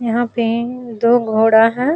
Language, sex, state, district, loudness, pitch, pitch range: Hindi, female, Uttar Pradesh, Jalaun, -15 LUFS, 235 Hz, 225-240 Hz